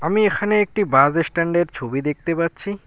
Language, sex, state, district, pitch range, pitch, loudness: Bengali, male, West Bengal, Alipurduar, 150-200 Hz, 170 Hz, -19 LUFS